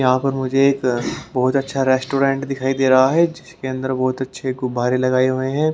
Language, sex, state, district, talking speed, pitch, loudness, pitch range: Hindi, male, Haryana, Rohtak, 200 wpm, 130 Hz, -19 LUFS, 130-135 Hz